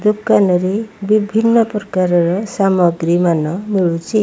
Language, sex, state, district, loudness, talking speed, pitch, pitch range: Odia, female, Odisha, Malkangiri, -15 LUFS, 70 wpm, 195 Hz, 175-210 Hz